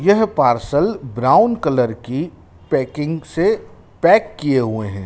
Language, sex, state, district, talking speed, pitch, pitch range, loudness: Hindi, male, Madhya Pradesh, Dhar, 130 wpm, 145 Hz, 125-205 Hz, -17 LUFS